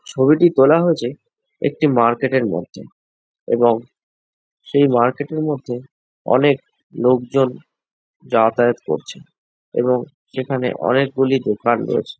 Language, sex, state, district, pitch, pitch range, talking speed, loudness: Bengali, male, West Bengal, Jhargram, 130 Hz, 120-140 Hz, 110 wpm, -18 LUFS